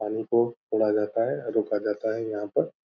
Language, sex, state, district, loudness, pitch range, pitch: Angika, male, Bihar, Purnia, -27 LUFS, 105-115 Hz, 110 Hz